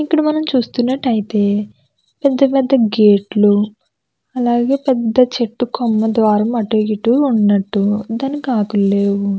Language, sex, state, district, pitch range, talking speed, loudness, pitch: Telugu, female, Andhra Pradesh, Krishna, 210-260 Hz, 100 wpm, -15 LUFS, 225 Hz